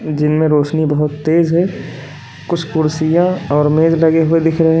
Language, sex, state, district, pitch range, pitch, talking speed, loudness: Hindi, male, Uttar Pradesh, Lalitpur, 150-165 Hz, 160 Hz, 175 wpm, -14 LUFS